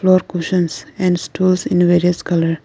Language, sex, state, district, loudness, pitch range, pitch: English, female, Arunachal Pradesh, Lower Dibang Valley, -16 LUFS, 170-185 Hz, 175 Hz